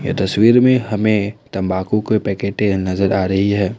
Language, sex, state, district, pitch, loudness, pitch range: Hindi, male, Assam, Kamrup Metropolitan, 100 Hz, -16 LUFS, 95-110 Hz